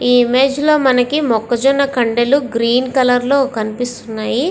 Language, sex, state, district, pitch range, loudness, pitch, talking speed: Telugu, female, Andhra Pradesh, Visakhapatnam, 240-275 Hz, -15 LUFS, 250 Hz, 135 wpm